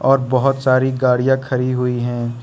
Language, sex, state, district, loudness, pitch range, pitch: Hindi, male, Arunachal Pradesh, Lower Dibang Valley, -17 LUFS, 125-130 Hz, 130 Hz